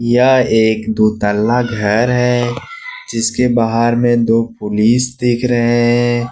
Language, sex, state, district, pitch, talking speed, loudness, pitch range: Hindi, male, Jharkhand, Ranchi, 120 Hz, 135 wpm, -14 LUFS, 115-125 Hz